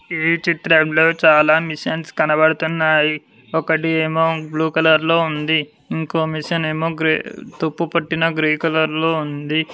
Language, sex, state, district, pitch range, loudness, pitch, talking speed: Telugu, male, Telangana, Mahabubabad, 155-165 Hz, -17 LUFS, 160 Hz, 125 wpm